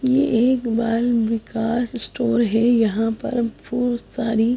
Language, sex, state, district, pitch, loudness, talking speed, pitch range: Hindi, female, Odisha, Sambalpur, 235 Hz, -20 LUFS, 130 wpm, 225-245 Hz